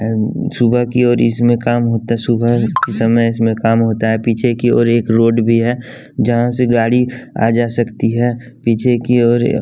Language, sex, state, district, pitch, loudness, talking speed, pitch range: Hindi, male, Bihar, West Champaran, 115 Hz, -14 LUFS, 205 wpm, 115-120 Hz